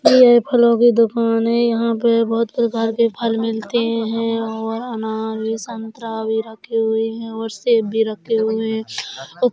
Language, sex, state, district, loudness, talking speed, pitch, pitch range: Hindi, female, Uttar Pradesh, Hamirpur, -18 LUFS, 185 wpm, 225 Hz, 220-235 Hz